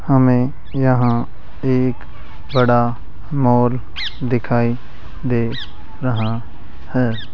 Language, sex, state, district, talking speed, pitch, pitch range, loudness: Hindi, male, Rajasthan, Jaipur, 75 wpm, 120 Hz, 115-125 Hz, -19 LUFS